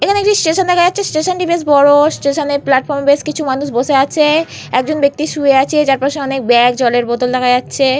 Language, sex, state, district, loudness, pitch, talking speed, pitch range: Bengali, female, Jharkhand, Jamtara, -13 LUFS, 285 Hz, 225 wpm, 265-305 Hz